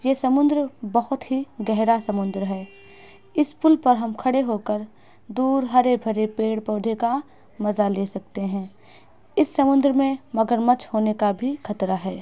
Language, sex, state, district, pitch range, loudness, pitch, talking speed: Hindi, female, Uttar Pradesh, Etah, 210-265 Hz, -22 LUFS, 230 Hz, 165 wpm